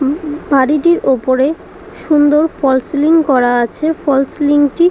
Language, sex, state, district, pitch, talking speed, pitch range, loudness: Bengali, female, West Bengal, Dakshin Dinajpur, 290 Hz, 160 wpm, 270-315 Hz, -13 LUFS